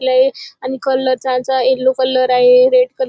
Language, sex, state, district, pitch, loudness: Marathi, female, Maharashtra, Chandrapur, 265 Hz, -14 LUFS